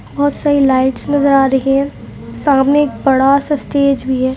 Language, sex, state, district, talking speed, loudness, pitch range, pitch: Hindi, female, Uttarakhand, Tehri Garhwal, 205 wpm, -13 LUFS, 265-285 Hz, 275 Hz